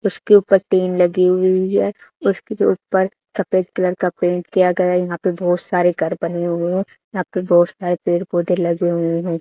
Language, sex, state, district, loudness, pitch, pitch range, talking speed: Hindi, female, Haryana, Charkhi Dadri, -18 LUFS, 180 Hz, 175-185 Hz, 205 wpm